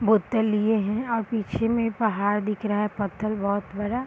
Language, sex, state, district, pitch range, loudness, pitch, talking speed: Hindi, female, Bihar, Muzaffarpur, 205-225 Hz, -25 LUFS, 215 Hz, 190 wpm